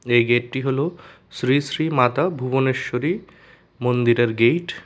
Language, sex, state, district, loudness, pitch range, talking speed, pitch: Bengali, male, Tripura, West Tripura, -21 LUFS, 120-140 Hz, 125 wpm, 130 Hz